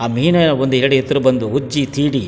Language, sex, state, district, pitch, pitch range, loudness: Kannada, male, Karnataka, Chamarajanagar, 135 Hz, 130-145 Hz, -15 LUFS